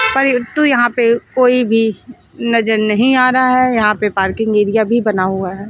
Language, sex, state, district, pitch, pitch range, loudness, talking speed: Hindi, female, Chandigarh, Chandigarh, 230 Hz, 210-250 Hz, -14 LUFS, 190 wpm